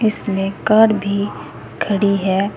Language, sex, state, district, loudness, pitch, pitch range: Hindi, female, Uttar Pradesh, Saharanpur, -17 LUFS, 200 Hz, 195-215 Hz